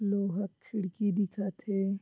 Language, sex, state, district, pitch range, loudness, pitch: Chhattisgarhi, male, Chhattisgarh, Bilaspur, 195-205 Hz, -33 LUFS, 200 Hz